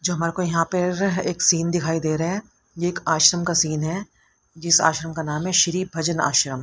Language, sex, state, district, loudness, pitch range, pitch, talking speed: Hindi, female, Haryana, Rohtak, -21 LUFS, 160-180 Hz, 170 Hz, 225 wpm